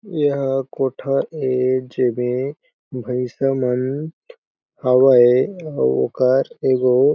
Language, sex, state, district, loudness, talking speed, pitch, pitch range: Chhattisgarhi, male, Chhattisgarh, Jashpur, -19 LUFS, 85 wpm, 130 Hz, 125-135 Hz